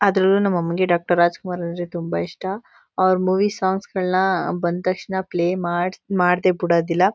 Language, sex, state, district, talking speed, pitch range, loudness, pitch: Kannada, female, Karnataka, Mysore, 150 wpm, 175-190 Hz, -21 LUFS, 185 Hz